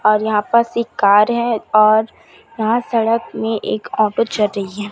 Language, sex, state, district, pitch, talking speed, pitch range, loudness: Hindi, female, Chhattisgarh, Raipur, 220 Hz, 180 wpm, 210-235 Hz, -16 LUFS